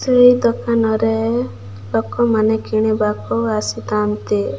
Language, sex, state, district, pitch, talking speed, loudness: Odia, female, Odisha, Malkangiri, 215 Hz, 80 wpm, -17 LUFS